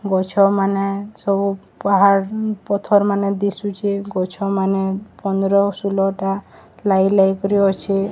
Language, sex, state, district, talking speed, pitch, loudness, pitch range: Odia, female, Odisha, Sambalpur, 90 wpm, 200 Hz, -18 LUFS, 195-200 Hz